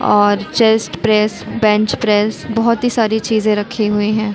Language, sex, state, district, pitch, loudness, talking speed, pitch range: Hindi, female, Chhattisgarh, Bilaspur, 215 Hz, -15 LUFS, 165 wpm, 210-225 Hz